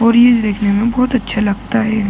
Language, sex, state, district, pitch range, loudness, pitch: Hindi, male, Uttar Pradesh, Ghazipur, 210-240 Hz, -14 LUFS, 220 Hz